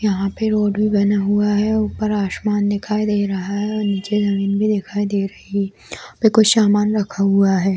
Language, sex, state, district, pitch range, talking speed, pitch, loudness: Hindi, female, Bihar, Darbhanga, 200-210 Hz, 210 wpm, 205 Hz, -18 LUFS